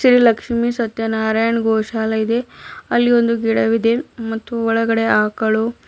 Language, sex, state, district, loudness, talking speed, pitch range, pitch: Kannada, female, Karnataka, Bidar, -17 LUFS, 110 wpm, 225-235 Hz, 225 Hz